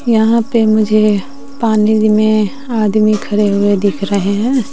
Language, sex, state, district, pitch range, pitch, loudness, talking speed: Hindi, female, Bihar, West Champaran, 210-230 Hz, 215 Hz, -13 LUFS, 140 wpm